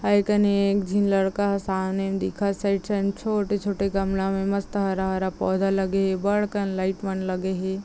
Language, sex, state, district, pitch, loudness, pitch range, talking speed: Chhattisgarhi, female, Chhattisgarh, Raigarh, 195 Hz, -24 LUFS, 190-200 Hz, 175 wpm